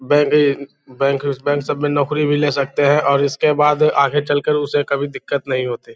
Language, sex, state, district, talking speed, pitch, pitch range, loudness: Hindi, male, Bihar, Lakhisarai, 200 wpm, 145 Hz, 140-145 Hz, -17 LUFS